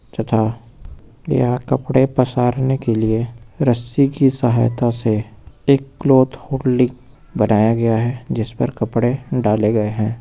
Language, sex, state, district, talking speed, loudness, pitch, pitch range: Hindi, male, Uttar Pradesh, Lucknow, 130 wpm, -18 LUFS, 120 Hz, 110-130 Hz